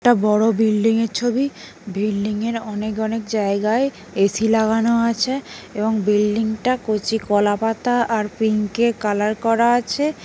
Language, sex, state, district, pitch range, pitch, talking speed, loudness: Bengali, female, West Bengal, North 24 Parganas, 210-230 Hz, 220 Hz, 145 wpm, -19 LUFS